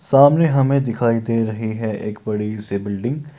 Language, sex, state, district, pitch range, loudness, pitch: Maithili, male, Bihar, Kishanganj, 105-135 Hz, -19 LUFS, 115 Hz